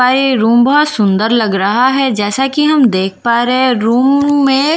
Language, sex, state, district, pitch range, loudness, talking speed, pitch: Hindi, female, Bihar, Katihar, 225-270 Hz, -11 LUFS, 190 wpm, 250 Hz